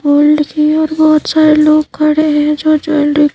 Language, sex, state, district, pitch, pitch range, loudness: Hindi, female, Madhya Pradesh, Bhopal, 305 Hz, 295-310 Hz, -11 LUFS